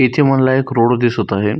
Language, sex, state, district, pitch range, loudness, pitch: Marathi, male, Maharashtra, Solapur, 115-135 Hz, -14 LUFS, 125 Hz